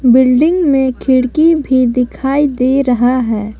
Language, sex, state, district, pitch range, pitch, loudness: Hindi, female, Jharkhand, Palamu, 250-275 Hz, 260 Hz, -12 LUFS